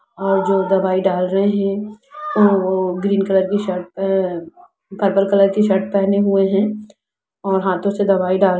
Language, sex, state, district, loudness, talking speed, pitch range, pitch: Hindi, female, Jharkhand, Jamtara, -17 LUFS, 190 wpm, 190-200 Hz, 195 Hz